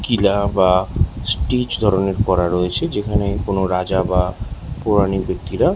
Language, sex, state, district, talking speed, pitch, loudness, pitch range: Bengali, male, West Bengal, Jhargram, 125 wpm, 95 Hz, -18 LUFS, 90-105 Hz